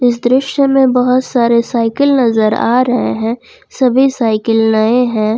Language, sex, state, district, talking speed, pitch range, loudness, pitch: Hindi, female, Jharkhand, Ranchi, 155 wpm, 225-260 Hz, -12 LUFS, 240 Hz